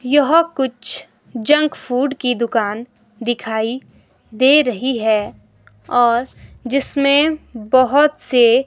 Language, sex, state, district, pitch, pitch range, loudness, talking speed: Hindi, female, Himachal Pradesh, Shimla, 250 Hz, 230-280 Hz, -17 LUFS, 95 wpm